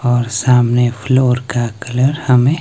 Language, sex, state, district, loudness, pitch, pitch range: Hindi, male, Himachal Pradesh, Shimla, -14 LUFS, 125 Hz, 120-130 Hz